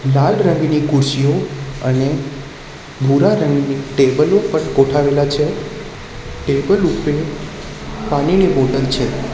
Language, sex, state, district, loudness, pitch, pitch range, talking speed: Gujarati, male, Gujarat, Valsad, -16 LUFS, 140 Hz, 135-150 Hz, 95 wpm